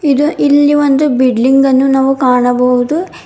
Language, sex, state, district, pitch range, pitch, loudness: Kannada, female, Karnataka, Bidar, 255-290 Hz, 270 Hz, -10 LUFS